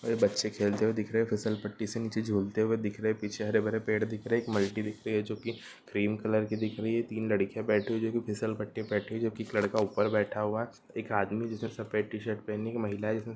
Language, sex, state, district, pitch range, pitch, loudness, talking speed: Hindi, male, Bihar, Gopalganj, 105-110 Hz, 110 Hz, -32 LUFS, 280 wpm